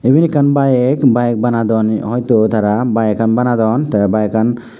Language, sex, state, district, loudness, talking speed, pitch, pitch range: Chakma, male, Tripura, West Tripura, -14 LUFS, 150 wpm, 115 Hz, 110-125 Hz